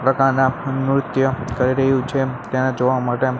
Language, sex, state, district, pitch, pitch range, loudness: Gujarati, male, Gujarat, Gandhinagar, 130 Hz, 130-135 Hz, -19 LUFS